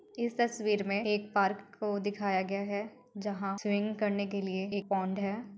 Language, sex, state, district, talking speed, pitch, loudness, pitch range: Hindi, female, Uttar Pradesh, Etah, 185 wpm, 205 Hz, -33 LUFS, 200-210 Hz